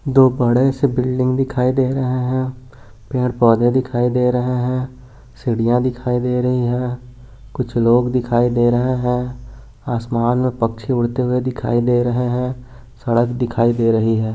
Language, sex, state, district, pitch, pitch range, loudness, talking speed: Hindi, male, Maharashtra, Aurangabad, 125 Hz, 120-125 Hz, -18 LUFS, 165 wpm